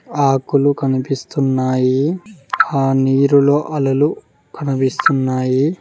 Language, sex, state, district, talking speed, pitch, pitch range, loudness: Telugu, male, Telangana, Mahabubabad, 60 wpm, 135 Hz, 135-145 Hz, -16 LUFS